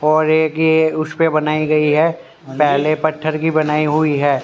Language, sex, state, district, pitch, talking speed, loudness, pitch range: Hindi, male, Haryana, Rohtak, 155 Hz, 175 wpm, -16 LUFS, 150-160 Hz